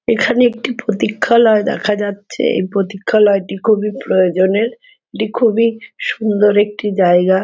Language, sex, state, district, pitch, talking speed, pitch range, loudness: Bengali, female, West Bengal, Kolkata, 210 Hz, 120 wpm, 195-230 Hz, -15 LUFS